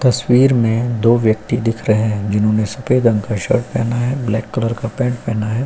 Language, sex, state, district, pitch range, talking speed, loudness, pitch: Hindi, male, Uttar Pradesh, Jyotiba Phule Nagar, 110-125 Hz, 210 wpm, -16 LUFS, 115 Hz